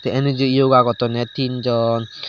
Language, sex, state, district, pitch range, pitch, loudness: Chakma, male, Tripura, Dhalai, 120-135 Hz, 125 Hz, -18 LUFS